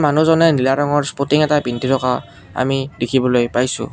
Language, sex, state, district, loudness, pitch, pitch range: Assamese, male, Assam, Kamrup Metropolitan, -17 LUFS, 135 Hz, 125-145 Hz